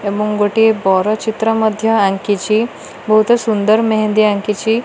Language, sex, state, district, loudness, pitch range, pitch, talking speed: Odia, female, Odisha, Malkangiri, -14 LUFS, 210-220 Hz, 215 Hz, 125 wpm